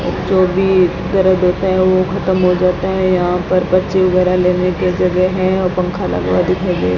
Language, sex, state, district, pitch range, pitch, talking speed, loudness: Hindi, female, Rajasthan, Bikaner, 180-185 Hz, 185 Hz, 230 wpm, -14 LUFS